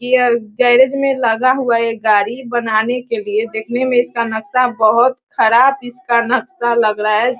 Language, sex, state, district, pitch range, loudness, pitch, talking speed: Hindi, female, Bihar, Sitamarhi, 225-255 Hz, -15 LUFS, 240 Hz, 170 wpm